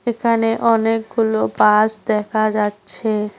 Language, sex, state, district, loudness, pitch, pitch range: Bengali, female, West Bengal, Cooch Behar, -17 LUFS, 220 Hz, 210-225 Hz